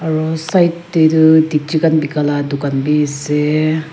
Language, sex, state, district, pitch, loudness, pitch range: Nagamese, female, Nagaland, Kohima, 155 Hz, -14 LUFS, 150-160 Hz